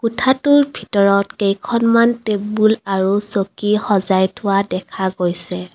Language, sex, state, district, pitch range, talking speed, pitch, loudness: Assamese, female, Assam, Kamrup Metropolitan, 190-225 Hz, 105 wpm, 205 Hz, -17 LUFS